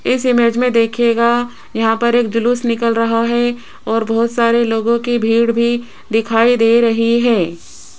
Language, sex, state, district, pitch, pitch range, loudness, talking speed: Hindi, female, Rajasthan, Jaipur, 235 Hz, 225-240 Hz, -15 LUFS, 165 wpm